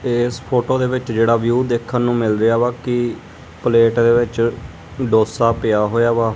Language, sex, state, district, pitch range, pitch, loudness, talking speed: Punjabi, male, Punjab, Kapurthala, 115-120 Hz, 120 Hz, -17 LUFS, 180 wpm